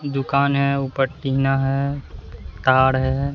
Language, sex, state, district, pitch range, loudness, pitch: Hindi, male, Bihar, Katihar, 130-140 Hz, -20 LUFS, 135 Hz